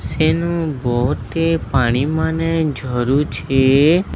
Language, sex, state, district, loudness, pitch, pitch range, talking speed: Odia, male, Odisha, Sambalpur, -17 LUFS, 150 Hz, 130-160 Hz, 85 wpm